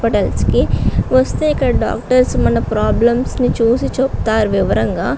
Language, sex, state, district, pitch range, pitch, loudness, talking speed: Telugu, female, Andhra Pradesh, Srikakulam, 230-260 Hz, 250 Hz, -15 LUFS, 130 wpm